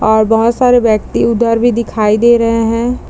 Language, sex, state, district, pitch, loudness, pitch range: Hindi, female, Bihar, Madhepura, 230 Hz, -11 LUFS, 225-235 Hz